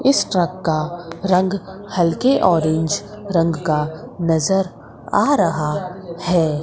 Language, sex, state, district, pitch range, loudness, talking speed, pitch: Hindi, female, Madhya Pradesh, Umaria, 160-190 Hz, -19 LUFS, 110 wpm, 175 Hz